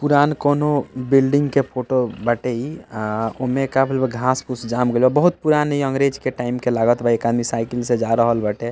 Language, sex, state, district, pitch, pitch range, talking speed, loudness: Bhojpuri, male, Bihar, East Champaran, 125 Hz, 120-135 Hz, 220 wpm, -19 LUFS